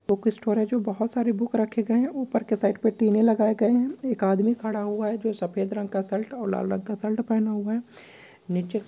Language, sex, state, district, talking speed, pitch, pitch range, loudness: Hindi, male, Maharashtra, Pune, 250 wpm, 220 Hz, 205-230 Hz, -25 LUFS